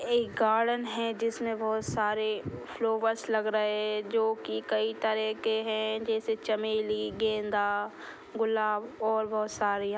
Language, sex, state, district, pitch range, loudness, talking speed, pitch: Hindi, female, Bihar, Gopalganj, 215-225 Hz, -30 LUFS, 150 wpm, 220 Hz